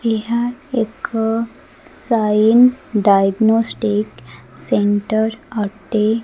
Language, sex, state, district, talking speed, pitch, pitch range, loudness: Odia, female, Odisha, Khordha, 60 wpm, 220 Hz, 210-230 Hz, -17 LUFS